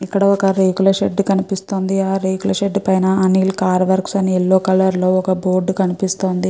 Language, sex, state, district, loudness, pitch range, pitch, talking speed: Telugu, female, Andhra Pradesh, Guntur, -16 LUFS, 185-195 Hz, 190 Hz, 175 wpm